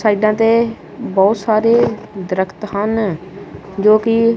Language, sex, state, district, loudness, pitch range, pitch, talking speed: Punjabi, male, Punjab, Kapurthala, -15 LUFS, 195-225 Hz, 215 Hz, 110 wpm